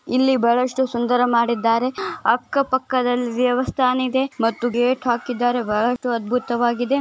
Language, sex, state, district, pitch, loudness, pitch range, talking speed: Kannada, female, Karnataka, Bijapur, 245 Hz, -20 LUFS, 235-255 Hz, 110 wpm